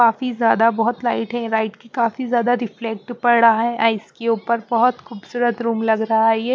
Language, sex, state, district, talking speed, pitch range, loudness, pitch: Hindi, female, Punjab, Pathankot, 220 wpm, 225-240 Hz, -19 LUFS, 230 Hz